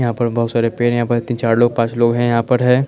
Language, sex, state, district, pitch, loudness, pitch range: Hindi, male, Chandigarh, Chandigarh, 120 Hz, -16 LUFS, 115-120 Hz